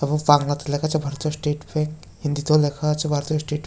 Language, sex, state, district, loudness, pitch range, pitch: Bengali, male, Tripura, West Tripura, -22 LUFS, 145-155 Hz, 150 Hz